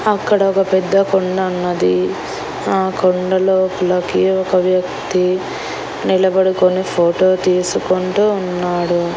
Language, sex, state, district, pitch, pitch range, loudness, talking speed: Telugu, female, Andhra Pradesh, Annamaya, 185 Hz, 180-190 Hz, -16 LUFS, 90 wpm